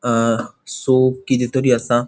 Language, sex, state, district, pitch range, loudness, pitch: Konkani, male, Goa, North and South Goa, 120-130 Hz, -18 LUFS, 125 Hz